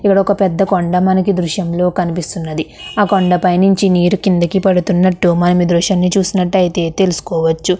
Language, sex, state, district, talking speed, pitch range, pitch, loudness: Telugu, female, Andhra Pradesh, Krishna, 115 wpm, 175-195 Hz, 180 Hz, -14 LUFS